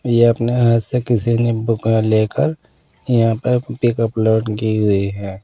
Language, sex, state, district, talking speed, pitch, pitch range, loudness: Hindi, male, Punjab, Pathankot, 165 wpm, 115 Hz, 110-120 Hz, -17 LUFS